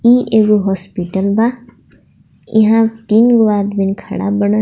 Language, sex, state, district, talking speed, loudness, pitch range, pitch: Bhojpuri, female, Jharkhand, Palamu, 130 wpm, -13 LUFS, 200-225 Hz, 215 Hz